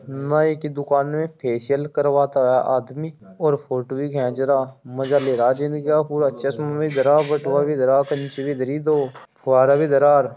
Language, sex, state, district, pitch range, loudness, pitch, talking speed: Hindi, male, Uttar Pradesh, Muzaffarnagar, 135-150 Hz, -20 LUFS, 140 Hz, 195 wpm